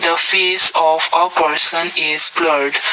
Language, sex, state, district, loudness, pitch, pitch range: English, male, Assam, Kamrup Metropolitan, -12 LUFS, 165 Hz, 155-170 Hz